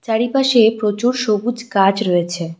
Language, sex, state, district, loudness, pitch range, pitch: Bengali, female, West Bengal, Cooch Behar, -16 LUFS, 195-240 Hz, 220 Hz